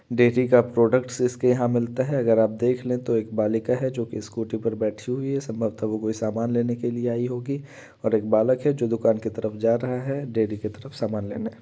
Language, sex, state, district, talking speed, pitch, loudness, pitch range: Hindi, male, Uttar Pradesh, Varanasi, 260 wpm, 120 Hz, -24 LUFS, 110-125 Hz